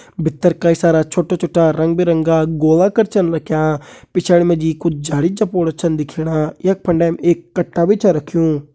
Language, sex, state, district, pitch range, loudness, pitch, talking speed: Kumaoni, male, Uttarakhand, Uttarkashi, 160-175 Hz, -16 LUFS, 170 Hz, 180 wpm